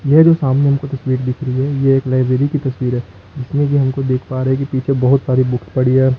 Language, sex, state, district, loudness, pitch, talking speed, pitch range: Hindi, male, Chandigarh, Chandigarh, -16 LUFS, 130 Hz, 270 wpm, 130-140 Hz